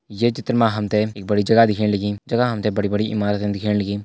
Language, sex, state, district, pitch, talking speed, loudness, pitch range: Hindi, male, Uttarakhand, Uttarkashi, 105 Hz, 250 wpm, -20 LUFS, 105-115 Hz